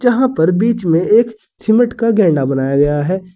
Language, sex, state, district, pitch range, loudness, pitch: Hindi, male, Uttar Pradesh, Saharanpur, 160-230 Hz, -14 LUFS, 195 Hz